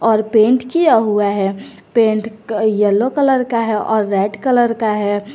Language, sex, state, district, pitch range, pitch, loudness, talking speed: Hindi, female, Jharkhand, Garhwa, 210-240 Hz, 220 Hz, -15 LUFS, 180 wpm